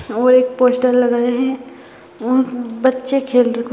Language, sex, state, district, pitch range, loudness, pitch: Hindi, female, Maharashtra, Aurangabad, 240-255 Hz, -16 LUFS, 250 Hz